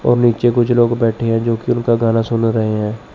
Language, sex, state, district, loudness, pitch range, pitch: Hindi, male, Chandigarh, Chandigarh, -15 LUFS, 115-120 Hz, 115 Hz